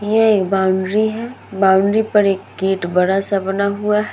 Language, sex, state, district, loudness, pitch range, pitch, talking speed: Hindi, female, Uttar Pradesh, Muzaffarnagar, -16 LUFS, 190-210 Hz, 200 Hz, 175 wpm